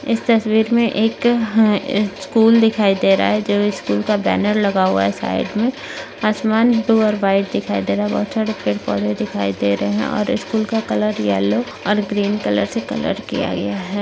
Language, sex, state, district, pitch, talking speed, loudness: Hindi, female, Maharashtra, Nagpur, 205 Hz, 205 wpm, -18 LUFS